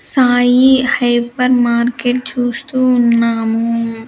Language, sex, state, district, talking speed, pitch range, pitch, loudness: Telugu, female, Andhra Pradesh, Sri Satya Sai, 75 wpm, 235-250 Hz, 245 Hz, -13 LUFS